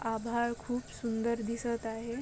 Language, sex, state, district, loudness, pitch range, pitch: Marathi, female, Maharashtra, Chandrapur, -35 LUFS, 225-235 Hz, 235 Hz